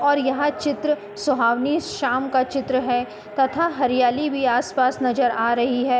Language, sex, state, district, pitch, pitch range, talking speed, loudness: Hindi, female, Uttar Pradesh, Muzaffarnagar, 260 Hz, 245-285 Hz, 160 wpm, -21 LUFS